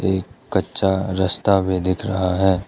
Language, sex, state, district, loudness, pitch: Hindi, male, Arunachal Pradesh, Lower Dibang Valley, -20 LUFS, 95 Hz